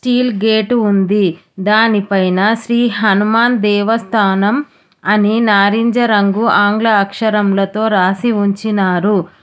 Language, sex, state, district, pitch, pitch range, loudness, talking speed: Telugu, female, Telangana, Hyderabad, 210 Hz, 200-225 Hz, -13 LUFS, 85 wpm